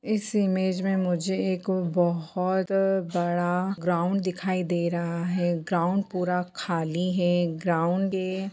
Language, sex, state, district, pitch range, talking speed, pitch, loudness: Hindi, female, Jharkhand, Jamtara, 175-190 Hz, 125 wpm, 180 Hz, -26 LUFS